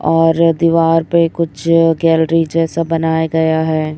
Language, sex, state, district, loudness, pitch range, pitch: Hindi, female, Chhattisgarh, Raipur, -13 LUFS, 160-165 Hz, 165 Hz